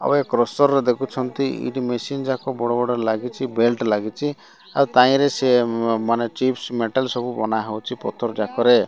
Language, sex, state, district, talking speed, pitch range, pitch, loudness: Odia, male, Odisha, Malkangiri, 155 wpm, 115-130 Hz, 125 Hz, -21 LUFS